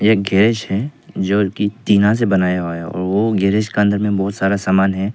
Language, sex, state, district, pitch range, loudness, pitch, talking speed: Hindi, male, Arunachal Pradesh, Papum Pare, 95-105 Hz, -17 LUFS, 100 Hz, 210 wpm